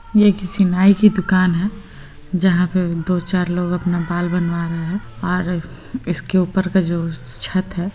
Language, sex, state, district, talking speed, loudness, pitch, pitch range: Hindi, female, Bihar, Muzaffarpur, 180 wpm, -18 LUFS, 180 Hz, 175-190 Hz